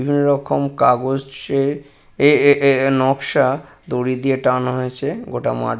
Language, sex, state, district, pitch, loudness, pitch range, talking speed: Bengali, male, West Bengal, Purulia, 135 Hz, -18 LUFS, 125-140 Hz, 125 wpm